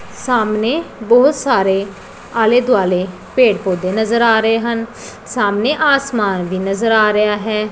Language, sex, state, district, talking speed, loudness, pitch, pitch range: Punjabi, female, Punjab, Pathankot, 140 wpm, -15 LUFS, 220 Hz, 200-240 Hz